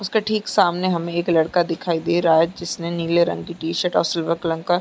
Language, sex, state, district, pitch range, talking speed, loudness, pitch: Hindi, female, Chhattisgarh, Bastar, 165-175 Hz, 250 wpm, -20 LUFS, 170 Hz